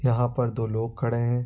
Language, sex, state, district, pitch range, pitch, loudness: Hindi, male, Bihar, Araria, 115-125 Hz, 120 Hz, -26 LUFS